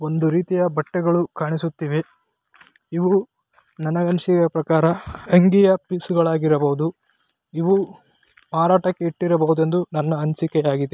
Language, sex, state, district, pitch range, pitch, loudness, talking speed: Kannada, male, Karnataka, Belgaum, 160-180 Hz, 165 Hz, -20 LUFS, 100 wpm